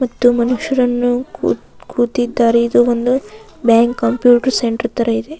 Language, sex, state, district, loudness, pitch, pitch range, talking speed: Kannada, female, Karnataka, Raichur, -15 LUFS, 240 Hz, 235-250 Hz, 120 wpm